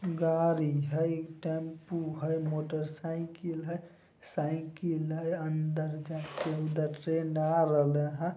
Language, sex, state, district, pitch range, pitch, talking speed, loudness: Maithili, male, Bihar, Samastipur, 155-165 Hz, 160 Hz, 115 wpm, -33 LUFS